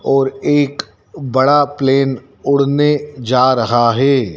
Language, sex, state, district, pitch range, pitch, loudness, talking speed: Hindi, male, Madhya Pradesh, Dhar, 130-145 Hz, 135 Hz, -14 LUFS, 110 wpm